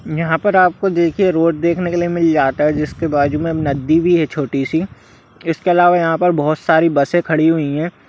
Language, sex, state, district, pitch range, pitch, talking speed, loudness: Hindi, male, Bihar, Darbhanga, 150-175 Hz, 165 Hz, 215 wpm, -15 LUFS